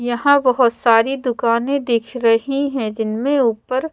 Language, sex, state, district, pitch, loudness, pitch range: Hindi, female, Bihar, Patna, 245 Hz, -17 LUFS, 230-275 Hz